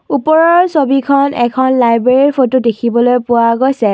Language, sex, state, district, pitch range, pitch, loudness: Assamese, female, Assam, Kamrup Metropolitan, 240-280 Hz, 260 Hz, -11 LUFS